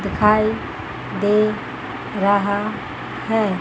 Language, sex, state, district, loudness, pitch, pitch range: Hindi, female, Chandigarh, Chandigarh, -21 LUFS, 210 Hz, 205-215 Hz